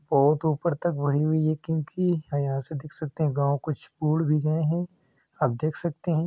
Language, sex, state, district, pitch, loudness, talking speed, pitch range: Hindi, male, Uttar Pradesh, Hamirpur, 155 Hz, -26 LUFS, 200 wpm, 145-160 Hz